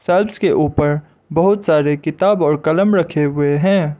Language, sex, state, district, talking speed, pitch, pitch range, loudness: Hindi, male, Arunachal Pradesh, Lower Dibang Valley, 165 wpm, 155 Hz, 150-190 Hz, -16 LUFS